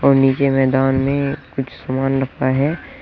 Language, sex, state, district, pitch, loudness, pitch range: Hindi, male, Uttar Pradesh, Shamli, 135 Hz, -18 LUFS, 135-140 Hz